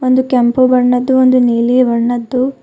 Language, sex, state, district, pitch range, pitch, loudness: Kannada, female, Karnataka, Bidar, 245-255 Hz, 250 Hz, -12 LUFS